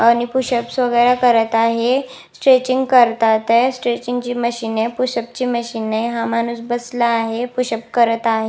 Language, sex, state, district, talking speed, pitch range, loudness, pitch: Marathi, female, Maharashtra, Nagpur, 155 wpm, 230-245 Hz, -17 LUFS, 235 Hz